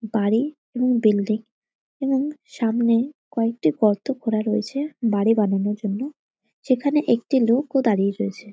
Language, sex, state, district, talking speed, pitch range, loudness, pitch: Bengali, female, West Bengal, North 24 Parganas, 135 wpm, 215-270 Hz, -22 LUFS, 230 Hz